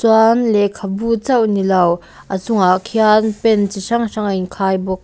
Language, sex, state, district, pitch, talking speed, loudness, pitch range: Mizo, female, Mizoram, Aizawl, 205 Hz, 165 wpm, -16 LUFS, 190-225 Hz